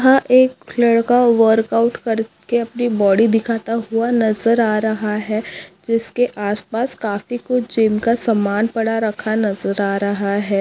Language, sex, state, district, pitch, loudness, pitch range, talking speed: Hindi, female, Maharashtra, Nagpur, 225 Hz, -17 LUFS, 210-235 Hz, 155 wpm